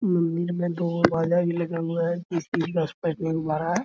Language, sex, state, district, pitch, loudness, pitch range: Hindi, male, Bihar, Araria, 170 Hz, -25 LUFS, 165-175 Hz